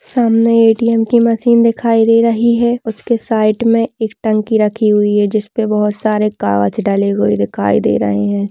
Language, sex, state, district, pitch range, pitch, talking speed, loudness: Hindi, female, Rajasthan, Nagaur, 205-230 Hz, 220 Hz, 190 wpm, -13 LUFS